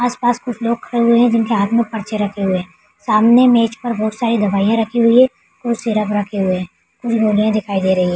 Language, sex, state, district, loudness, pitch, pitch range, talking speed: Hindi, female, Bihar, Araria, -16 LUFS, 225 Hz, 205-235 Hz, 225 wpm